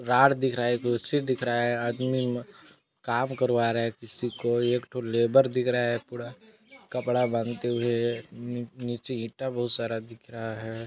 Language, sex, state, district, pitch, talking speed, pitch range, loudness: Hindi, male, Chhattisgarh, Balrampur, 120 Hz, 175 wpm, 115-125 Hz, -28 LUFS